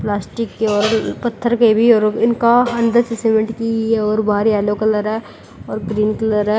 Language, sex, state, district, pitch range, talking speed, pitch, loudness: Hindi, female, Uttar Pradesh, Lalitpur, 215-230 Hz, 190 wpm, 220 Hz, -16 LUFS